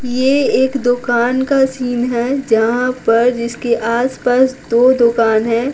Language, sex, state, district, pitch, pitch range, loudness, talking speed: Hindi, female, Bihar, Patna, 245 Hz, 235-260 Hz, -14 LUFS, 135 wpm